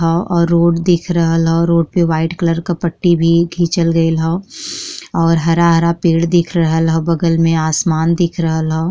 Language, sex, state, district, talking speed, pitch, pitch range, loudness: Bhojpuri, female, Uttar Pradesh, Gorakhpur, 180 wpm, 170 Hz, 165-170 Hz, -14 LUFS